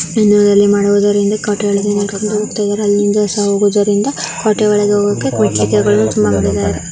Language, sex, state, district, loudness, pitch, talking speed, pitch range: Kannada, female, Karnataka, Belgaum, -13 LUFS, 205 Hz, 120 wpm, 135-205 Hz